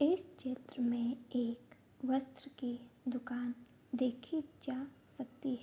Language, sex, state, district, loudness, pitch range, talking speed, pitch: Hindi, female, Bihar, Kishanganj, -40 LUFS, 245-270 Hz, 115 wpm, 255 Hz